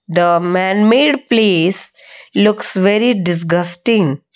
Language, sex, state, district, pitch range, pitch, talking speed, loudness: English, female, Odisha, Malkangiri, 175-220 Hz, 190 Hz, 95 wpm, -13 LUFS